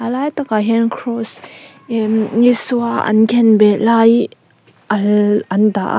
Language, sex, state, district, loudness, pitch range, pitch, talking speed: Mizo, female, Mizoram, Aizawl, -14 LUFS, 210-235 Hz, 225 Hz, 140 wpm